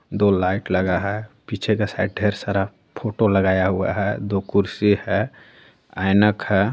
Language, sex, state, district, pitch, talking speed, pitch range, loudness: Hindi, female, Jharkhand, Garhwa, 100 Hz, 160 wpm, 95-105 Hz, -21 LUFS